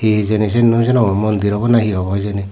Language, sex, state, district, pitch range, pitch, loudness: Chakma, male, Tripura, Dhalai, 100-115 Hz, 105 Hz, -15 LUFS